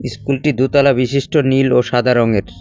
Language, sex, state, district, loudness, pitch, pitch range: Bengali, male, West Bengal, Cooch Behar, -15 LUFS, 130 Hz, 120-140 Hz